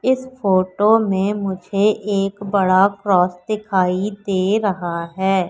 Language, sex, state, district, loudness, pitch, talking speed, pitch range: Hindi, female, Madhya Pradesh, Katni, -18 LUFS, 195 Hz, 120 wpm, 185-210 Hz